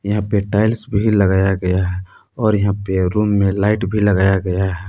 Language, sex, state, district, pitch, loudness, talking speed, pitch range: Hindi, male, Jharkhand, Palamu, 100 Hz, -17 LUFS, 210 wpm, 95-105 Hz